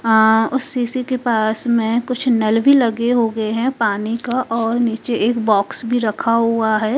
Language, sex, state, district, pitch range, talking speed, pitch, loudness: Hindi, female, Bihar, Katihar, 220-245 Hz, 190 wpm, 230 Hz, -17 LUFS